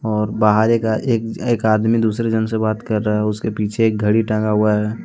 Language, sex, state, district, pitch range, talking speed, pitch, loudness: Hindi, male, Jharkhand, Deoghar, 105-115 Hz, 240 wpm, 110 Hz, -18 LUFS